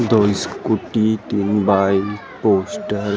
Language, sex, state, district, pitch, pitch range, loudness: Chhattisgarhi, male, Chhattisgarh, Rajnandgaon, 105 Hz, 100-110 Hz, -18 LUFS